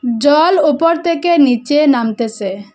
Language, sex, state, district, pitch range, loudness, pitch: Bengali, female, Assam, Hailakandi, 235-330 Hz, -13 LUFS, 290 Hz